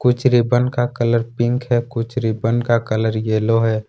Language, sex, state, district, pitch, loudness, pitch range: Hindi, male, Jharkhand, Ranchi, 120 Hz, -18 LUFS, 115-120 Hz